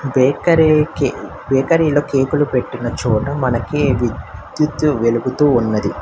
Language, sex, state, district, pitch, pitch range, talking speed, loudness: Telugu, male, Telangana, Hyderabad, 135 Hz, 115-145 Hz, 100 wpm, -16 LUFS